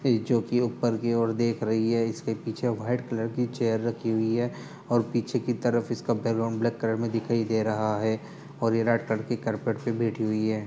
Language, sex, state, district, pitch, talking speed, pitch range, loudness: Hindi, male, Uttar Pradesh, Budaun, 115 Hz, 230 wpm, 110-120 Hz, -27 LUFS